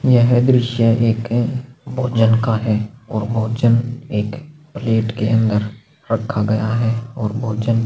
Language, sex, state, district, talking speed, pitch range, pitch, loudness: Hindi, male, Maharashtra, Aurangabad, 130 wpm, 110-120 Hz, 115 Hz, -18 LUFS